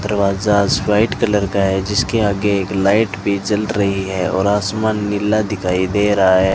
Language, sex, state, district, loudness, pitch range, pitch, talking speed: Hindi, male, Rajasthan, Bikaner, -16 LUFS, 95-105 Hz, 100 Hz, 185 wpm